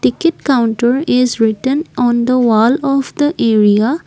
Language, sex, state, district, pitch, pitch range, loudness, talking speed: English, female, Assam, Kamrup Metropolitan, 250 Hz, 225-275 Hz, -13 LUFS, 145 wpm